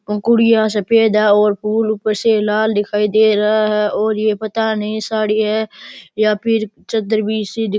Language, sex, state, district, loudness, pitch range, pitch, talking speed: Rajasthani, male, Rajasthan, Churu, -16 LUFS, 210-220 Hz, 215 Hz, 195 wpm